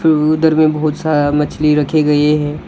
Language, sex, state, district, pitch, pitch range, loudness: Hindi, male, Arunachal Pradesh, Lower Dibang Valley, 150 Hz, 150-155 Hz, -13 LUFS